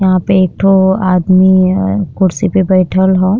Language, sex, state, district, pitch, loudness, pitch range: Bhojpuri, female, Uttar Pradesh, Deoria, 190 Hz, -11 LUFS, 185-195 Hz